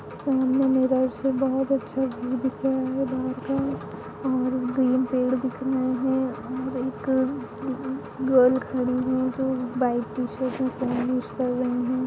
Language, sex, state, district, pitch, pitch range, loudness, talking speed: Hindi, female, Chhattisgarh, Bilaspur, 255 Hz, 250-260 Hz, -25 LUFS, 130 wpm